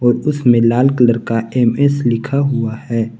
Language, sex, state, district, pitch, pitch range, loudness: Hindi, male, Jharkhand, Garhwa, 120 Hz, 115-135 Hz, -15 LUFS